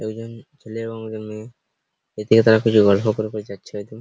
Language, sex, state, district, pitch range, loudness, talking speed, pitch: Bengali, male, West Bengal, Purulia, 105-115 Hz, -19 LUFS, 210 wpm, 110 Hz